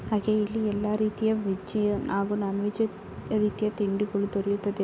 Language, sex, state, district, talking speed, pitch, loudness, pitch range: Kannada, female, Karnataka, Gulbarga, 125 wpm, 205 Hz, -28 LUFS, 200-215 Hz